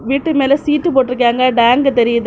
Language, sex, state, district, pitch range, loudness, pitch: Tamil, female, Tamil Nadu, Kanyakumari, 240-280 Hz, -13 LUFS, 260 Hz